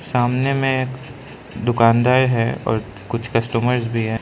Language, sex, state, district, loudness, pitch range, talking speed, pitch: Hindi, male, Arunachal Pradesh, Lower Dibang Valley, -19 LUFS, 115-130 Hz, 130 wpm, 120 Hz